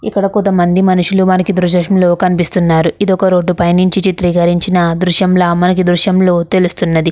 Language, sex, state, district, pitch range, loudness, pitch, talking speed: Telugu, female, Andhra Pradesh, Krishna, 175-185 Hz, -11 LUFS, 180 Hz, 135 wpm